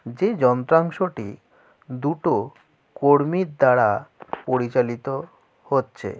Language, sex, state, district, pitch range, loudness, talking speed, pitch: Bengali, male, West Bengal, Jalpaiguri, 125-165 Hz, -21 LUFS, 70 wpm, 140 Hz